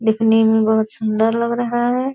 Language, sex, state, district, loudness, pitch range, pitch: Hindi, female, Bihar, Purnia, -17 LUFS, 220-240 Hz, 225 Hz